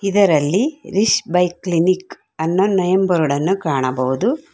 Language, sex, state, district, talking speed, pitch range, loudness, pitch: Kannada, female, Karnataka, Bangalore, 120 wpm, 160-200 Hz, -17 LUFS, 185 Hz